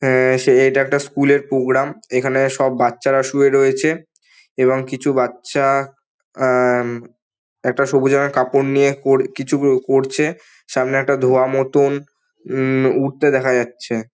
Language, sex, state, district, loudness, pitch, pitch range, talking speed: Bengali, male, West Bengal, Dakshin Dinajpur, -17 LUFS, 135 Hz, 130-140 Hz, 125 wpm